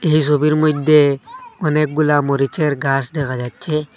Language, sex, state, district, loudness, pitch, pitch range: Bengali, male, Assam, Hailakandi, -17 LUFS, 150 Hz, 140-155 Hz